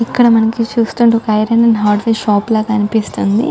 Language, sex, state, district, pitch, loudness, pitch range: Telugu, female, Telangana, Karimnagar, 225 Hz, -13 LUFS, 215-230 Hz